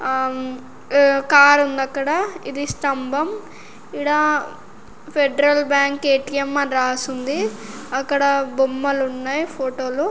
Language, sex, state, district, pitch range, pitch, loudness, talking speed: Telugu, female, Telangana, Karimnagar, 265-290 Hz, 280 Hz, -19 LUFS, 100 wpm